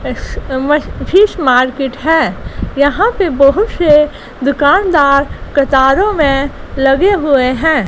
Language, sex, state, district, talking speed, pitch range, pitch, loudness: Hindi, female, Gujarat, Gandhinagar, 105 wpm, 270-325 Hz, 285 Hz, -12 LUFS